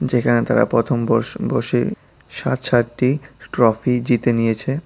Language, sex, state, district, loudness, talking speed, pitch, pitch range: Bengali, male, Tripura, West Tripura, -19 LUFS, 110 wpm, 120 Hz, 115-130 Hz